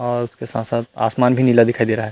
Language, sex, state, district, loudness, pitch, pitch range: Chhattisgarhi, male, Chhattisgarh, Rajnandgaon, -18 LUFS, 115 Hz, 115-120 Hz